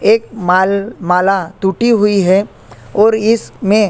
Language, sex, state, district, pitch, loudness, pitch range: Hindi, male, Chhattisgarh, Korba, 200 Hz, -13 LUFS, 190-220 Hz